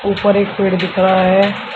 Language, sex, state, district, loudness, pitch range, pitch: Hindi, male, Uttar Pradesh, Shamli, -14 LUFS, 190-200 Hz, 195 Hz